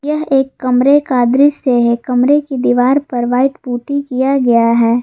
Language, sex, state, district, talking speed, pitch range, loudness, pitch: Hindi, female, Jharkhand, Garhwa, 180 wpm, 245-280 Hz, -13 LUFS, 255 Hz